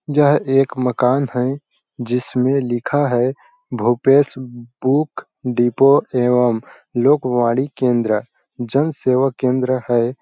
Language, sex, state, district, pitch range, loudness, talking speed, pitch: Hindi, male, Chhattisgarh, Balrampur, 120-135 Hz, -18 LUFS, 110 wpm, 130 Hz